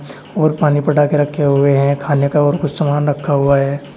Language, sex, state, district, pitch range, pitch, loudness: Hindi, male, Uttar Pradesh, Shamli, 140-150 Hz, 145 Hz, -15 LUFS